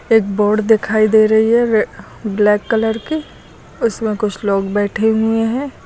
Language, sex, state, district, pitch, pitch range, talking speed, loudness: Hindi, female, Uttar Pradesh, Lucknow, 220 Hz, 210-225 Hz, 155 wpm, -15 LUFS